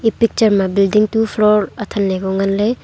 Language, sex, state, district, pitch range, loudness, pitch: Wancho, female, Arunachal Pradesh, Longding, 195-225 Hz, -15 LUFS, 210 Hz